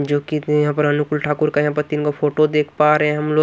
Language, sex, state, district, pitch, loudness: Hindi, male, Odisha, Nuapada, 150 Hz, -18 LUFS